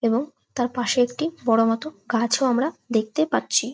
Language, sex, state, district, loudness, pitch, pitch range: Bengali, female, West Bengal, Malda, -23 LUFS, 245 Hz, 230-280 Hz